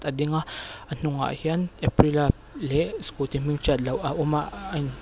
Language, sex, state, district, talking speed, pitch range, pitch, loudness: Mizo, female, Mizoram, Aizawl, 215 wpm, 140-155 Hz, 145 Hz, -26 LUFS